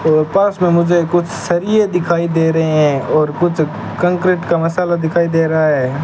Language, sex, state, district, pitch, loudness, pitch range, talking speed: Hindi, male, Rajasthan, Bikaner, 170 Hz, -15 LUFS, 160-175 Hz, 190 wpm